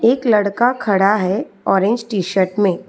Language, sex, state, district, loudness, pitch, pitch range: Hindi, female, Telangana, Hyderabad, -17 LUFS, 200 Hz, 195-225 Hz